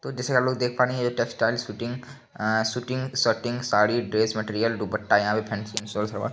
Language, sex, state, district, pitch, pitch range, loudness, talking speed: Hindi, male, Bihar, Begusarai, 115 Hz, 110-125 Hz, -25 LUFS, 230 wpm